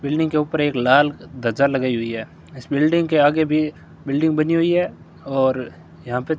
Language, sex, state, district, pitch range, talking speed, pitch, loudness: Hindi, male, Rajasthan, Bikaner, 130-160 Hz, 205 wpm, 145 Hz, -20 LUFS